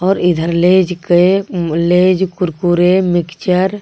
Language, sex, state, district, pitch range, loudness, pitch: Hindi, female, Jharkhand, Garhwa, 175-185 Hz, -13 LUFS, 180 Hz